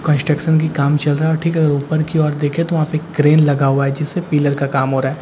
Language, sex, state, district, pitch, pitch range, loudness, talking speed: Hindi, male, Bihar, Katihar, 150 Hz, 140-155 Hz, -16 LUFS, 320 wpm